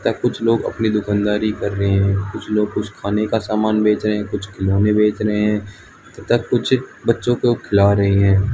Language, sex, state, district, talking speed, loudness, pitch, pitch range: Hindi, male, Arunachal Pradesh, Lower Dibang Valley, 195 wpm, -18 LUFS, 105 Hz, 100-110 Hz